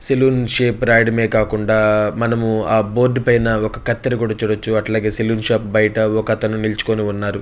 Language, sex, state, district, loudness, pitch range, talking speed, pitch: Telugu, male, Andhra Pradesh, Chittoor, -17 LUFS, 110-115 Hz, 145 wpm, 110 Hz